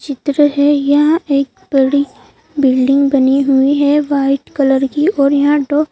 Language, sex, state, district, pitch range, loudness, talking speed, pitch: Hindi, female, Madhya Pradesh, Bhopal, 275-290 Hz, -13 LUFS, 140 wpm, 280 Hz